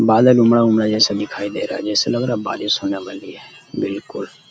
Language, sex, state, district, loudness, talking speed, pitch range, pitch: Hindi, male, Uttar Pradesh, Deoria, -17 LUFS, 225 wpm, 105-115 Hz, 110 Hz